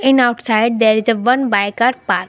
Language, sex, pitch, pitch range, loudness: English, female, 235 Hz, 220-250 Hz, -15 LUFS